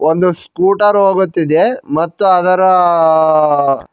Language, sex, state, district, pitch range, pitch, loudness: Kannada, male, Karnataka, Koppal, 160-190 Hz, 180 Hz, -12 LUFS